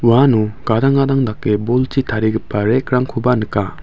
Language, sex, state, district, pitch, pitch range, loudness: Garo, male, Meghalaya, West Garo Hills, 115 Hz, 110-130 Hz, -16 LUFS